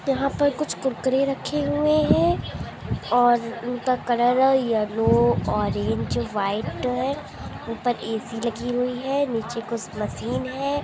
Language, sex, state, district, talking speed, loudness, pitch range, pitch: Hindi, female, Andhra Pradesh, Chittoor, 125 wpm, -23 LUFS, 205-265 Hz, 240 Hz